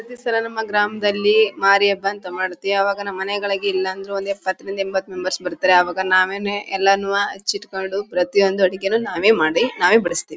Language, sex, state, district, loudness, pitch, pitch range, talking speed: Kannada, female, Karnataka, Mysore, -19 LUFS, 195 Hz, 185-205 Hz, 155 wpm